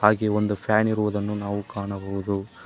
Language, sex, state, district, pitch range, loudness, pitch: Kannada, male, Karnataka, Koppal, 100-105 Hz, -25 LUFS, 105 Hz